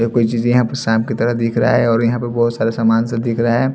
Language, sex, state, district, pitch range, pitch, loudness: Hindi, male, Haryana, Jhajjar, 115-120 Hz, 115 Hz, -16 LUFS